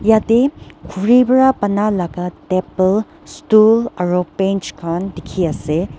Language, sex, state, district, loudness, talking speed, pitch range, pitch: Nagamese, female, Nagaland, Dimapur, -16 LUFS, 100 wpm, 180-220 Hz, 195 Hz